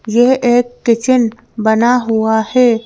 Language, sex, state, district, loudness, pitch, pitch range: Hindi, female, Madhya Pradesh, Bhopal, -13 LUFS, 235 Hz, 220-245 Hz